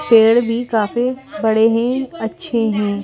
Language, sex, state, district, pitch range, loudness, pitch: Hindi, female, Madhya Pradesh, Bhopal, 220-250 Hz, -17 LUFS, 230 Hz